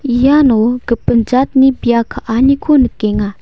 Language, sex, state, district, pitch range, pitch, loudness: Garo, female, Meghalaya, West Garo Hills, 230-265 Hz, 245 Hz, -12 LUFS